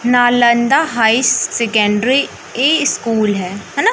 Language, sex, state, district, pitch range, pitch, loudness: Hindi, male, Madhya Pradesh, Katni, 220-260 Hz, 240 Hz, -14 LUFS